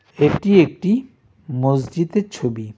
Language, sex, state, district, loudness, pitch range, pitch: Bengali, male, West Bengal, Darjeeling, -18 LUFS, 130-200 Hz, 165 Hz